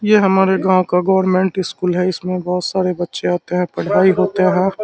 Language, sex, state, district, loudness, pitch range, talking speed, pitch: Hindi, male, Bihar, Samastipur, -16 LUFS, 180-190 Hz, 200 wpm, 185 Hz